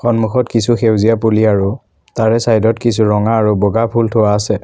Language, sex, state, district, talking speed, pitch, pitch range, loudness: Assamese, male, Assam, Kamrup Metropolitan, 195 wpm, 110 Hz, 105-115 Hz, -13 LUFS